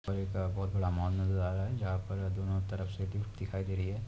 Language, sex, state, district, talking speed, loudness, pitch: Hindi, male, Chhattisgarh, Jashpur, 280 wpm, -35 LUFS, 95 Hz